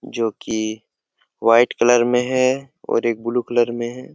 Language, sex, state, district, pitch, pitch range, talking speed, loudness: Hindi, male, Jharkhand, Jamtara, 120 Hz, 115-125 Hz, 175 wpm, -19 LUFS